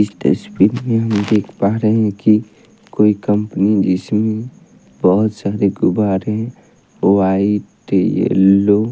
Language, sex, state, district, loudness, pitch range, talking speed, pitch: Hindi, male, Haryana, Rohtak, -16 LUFS, 100-110 Hz, 120 wpm, 105 Hz